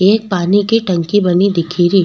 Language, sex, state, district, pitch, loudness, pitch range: Rajasthani, female, Rajasthan, Nagaur, 190 Hz, -13 LUFS, 175-205 Hz